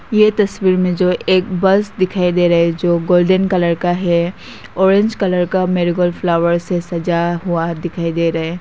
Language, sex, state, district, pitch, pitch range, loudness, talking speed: Hindi, female, Nagaland, Kohima, 180 Hz, 170-185 Hz, -15 LUFS, 190 wpm